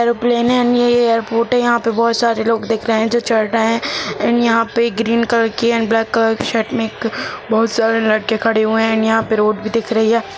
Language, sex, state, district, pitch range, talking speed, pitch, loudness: Hindi, female, Bihar, Gopalganj, 225-235 Hz, 255 wpm, 230 Hz, -16 LUFS